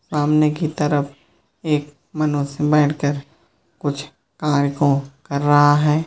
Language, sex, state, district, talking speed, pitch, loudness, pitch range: Hindi, male, Uttar Pradesh, Jyotiba Phule Nagar, 130 wpm, 145 Hz, -19 LUFS, 145-150 Hz